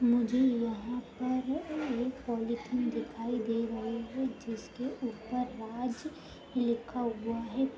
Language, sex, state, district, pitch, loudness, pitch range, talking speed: Hindi, female, Uttar Pradesh, Jalaun, 240 Hz, -34 LUFS, 230-255 Hz, 115 wpm